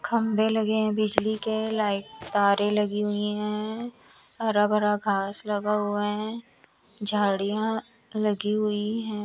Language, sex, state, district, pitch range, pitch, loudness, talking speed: Hindi, female, Chandigarh, Chandigarh, 205-220 Hz, 210 Hz, -26 LUFS, 130 wpm